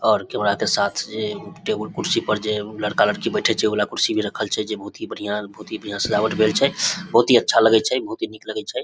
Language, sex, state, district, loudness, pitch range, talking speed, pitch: Maithili, male, Bihar, Samastipur, -21 LUFS, 105-110 Hz, 260 wpm, 110 Hz